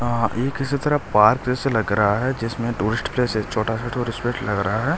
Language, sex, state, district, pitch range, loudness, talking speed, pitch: Hindi, male, Delhi, New Delhi, 110-125 Hz, -21 LUFS, 240 wpm, 120 Hz